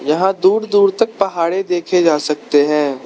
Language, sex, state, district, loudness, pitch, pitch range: Hindi, male, Arunachal Pradesh, Lower Dibang Valley, -15 LUFS, 175 Hz, 150-195 Hz